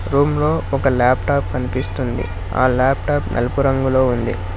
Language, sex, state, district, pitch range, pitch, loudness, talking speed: Telugu, male, Telangana, Hyderabad, 100-135 Hz, 125 Hz, -18 LUFS, 130 wpm